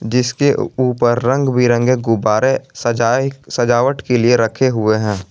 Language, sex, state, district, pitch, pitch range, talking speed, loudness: Hindi, male, Jharkhand, Garhwa, 120 Hz, 115-130 Hz, 135 wpm, -15 LUFS